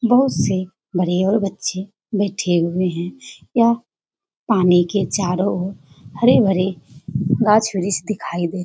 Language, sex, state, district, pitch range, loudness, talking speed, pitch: Hindi, female, Bihar, Jamui, 175-210 Hz, -19 LUFS, 125 wpm, 185 Hz